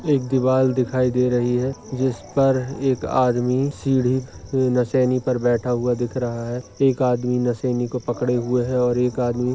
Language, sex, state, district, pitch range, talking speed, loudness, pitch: Hindi, male, Maharashtra, Nagpur, 125-130 Hz, 175 wpm, -21 LUFS, 125 Hz